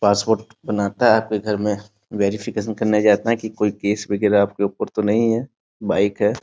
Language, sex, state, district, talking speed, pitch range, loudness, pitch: Hindi, male, Bihar, Sitamarhi, 185 wpm, 100-110 Hz, -20 LUFS, 105 Hz